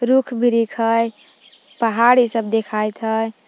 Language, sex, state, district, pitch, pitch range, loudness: Magahi, female, Jharkhand, Palamu, 230 Hz, 225-240 Hz, -18 LUFS